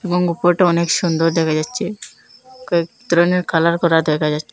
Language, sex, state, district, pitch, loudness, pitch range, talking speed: Bengali, female, Assam, Hailakandi, 170 Hz, -17 LUFS, 165-180 Hz, 160 wpm